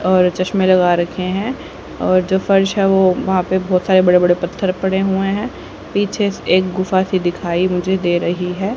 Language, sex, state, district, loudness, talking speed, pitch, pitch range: Hindi, female, Haryana, Rohtak, -16 LUFS, 205 wpm, 185 Hz, 180-195 Hz